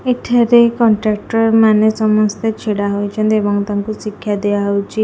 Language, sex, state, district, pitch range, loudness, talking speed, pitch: Odia, female, Odisha, Khordha, 205-225 Hz, -15 LUFS, 130 wpm, 215 Hz